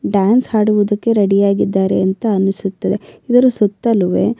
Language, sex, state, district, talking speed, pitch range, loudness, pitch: Kannada, female, Karnataka, Bellary, 110 wpm, 195-230 Hz, -15 LUFS, 205 Hz